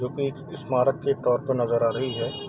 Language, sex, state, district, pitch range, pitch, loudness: Hindi, male, Bihar, East Champaran, 120-140 Hz, 130 Hz, -25 LUFS